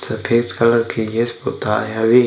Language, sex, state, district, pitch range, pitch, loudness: Chhattisgarhi, male, Chhattisgarh, Bastar, 110-120 Hz, 115 Hz, -18 LUFS